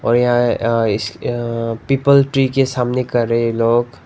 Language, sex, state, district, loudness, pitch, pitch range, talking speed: Hindi, male, Nagaland, Dimapur, -16 LUFS, 120 Hz, 115-125 Hz, 150 wpm